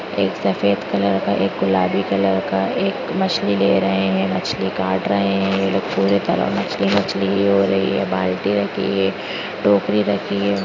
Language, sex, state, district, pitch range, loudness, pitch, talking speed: Hindi, female, Chhattisgarh, Bastar, 95-100 Hz, -19 LUFS, 100 Hz, 175 wpm